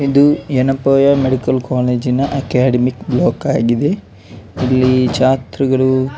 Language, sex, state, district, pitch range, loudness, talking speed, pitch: Kannada, male, Karnataka, Dakshina Kannada, 125-135 Hz, -15 LUFS, 95 wpm, 130 Hz